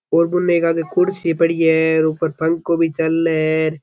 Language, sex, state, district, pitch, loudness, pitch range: Rajasthani, male, Rajasthan, Churu, 165 Hz, -17 LUFS, 160-170 Hz